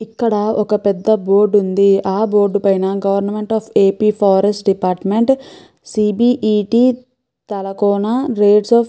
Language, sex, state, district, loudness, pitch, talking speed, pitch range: Telugu, female, Andhra Pradesh, Chittoor, -15 LUFS, 210 Hz, 120 wpm, 200-220 Hz